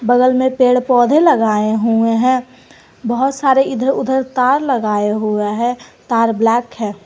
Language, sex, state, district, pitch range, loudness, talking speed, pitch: Hindi, female, Jharkhand, Garhwa, 225-260 Hz, -15 LUFS, 155 wpm, 245 Hz